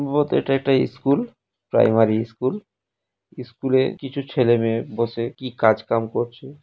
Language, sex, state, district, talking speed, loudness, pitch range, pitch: Bengali, male, West Bengal, North 24 Parganas, 135 wpm, -21 LUFS, 115-135 Hz, 125 Hz